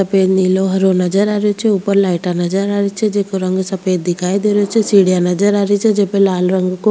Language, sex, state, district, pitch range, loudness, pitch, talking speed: Rajasthani, female, Rajasthan, Churu, 185-205 Hz, -14 LUFS, 195 Hz, 245 wpm